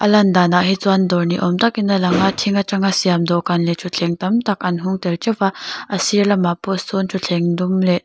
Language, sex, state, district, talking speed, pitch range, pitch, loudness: Mizo, female, Mizoram, Aizawl, 240 wpm, 175-195 Hz, 185 Hz, -17 LUFS